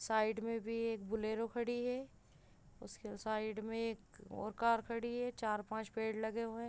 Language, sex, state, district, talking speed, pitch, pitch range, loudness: Hindi, female, Uttar Pradesh, Gorakhpur, 180 wpm, 225 Hz, 220-230 Hz, -40 LUFS